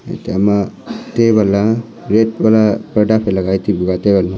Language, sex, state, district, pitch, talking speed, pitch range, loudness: Wancho, male, Arunachal Pradesh, Longding, 105 Hz, 150 wpm, 95-110 Hz, -14 LUFS